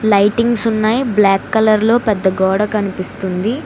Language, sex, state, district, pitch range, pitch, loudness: Telugu, female, Telangana, Hyderabad, 195-225 Hz, 215 Hz, -15 LUFS